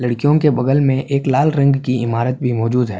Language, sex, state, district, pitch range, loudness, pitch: Urdu, male, Uttar Pradesh, Budaun, 125-140 Hz, -16 LUFS, 130 Hz